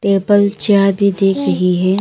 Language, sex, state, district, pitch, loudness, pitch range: Hindi, female, Arunachal Pradesh, Papum Pare, 195 Hz, -14 LUFS, 185-200 Hz